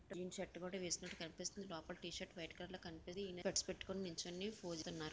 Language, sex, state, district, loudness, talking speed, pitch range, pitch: Telugu, female, Andhra Pradesh, Visakhapatnam, -47 LUFS, 175 wpm, 170-185 Hz, 180 Hz